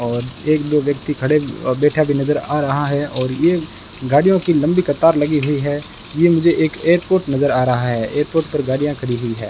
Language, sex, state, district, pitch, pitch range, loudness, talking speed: Hindi, male, Rajasthan, Bikaner, 145 Hz, 130-155 Hz, -17 LUFS, 215 wpm